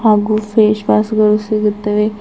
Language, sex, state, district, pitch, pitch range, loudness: Kannada, female, Karnataka, Bidar, 215 Hz, 210-215 Hz, -14 LUFS